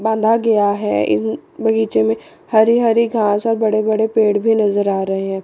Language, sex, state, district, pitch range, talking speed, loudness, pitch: Hindi, female, Chandigarh, Chandigarh, 195-220 Hz, 185 wpm, -16 LUFS, 210 Hz